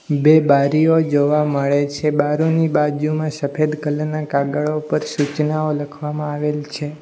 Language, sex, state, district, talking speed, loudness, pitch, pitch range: Gujarati, male, Gujarat, Valsad, 135 wpm, -18 LUFS, 150 Hz, 145-155 Hz